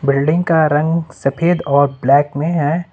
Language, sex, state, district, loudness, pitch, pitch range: Hindi, male, Jharkhand, Ranchi, -15 LUFS, 150 Hz, 140-165 Hz